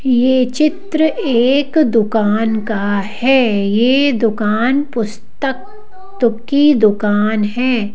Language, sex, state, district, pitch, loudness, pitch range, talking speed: Hindi, female, Madhya Pradesh, Bhopal, 245 Hz, -15 LUFS, 215-280 Hz, 90 wpm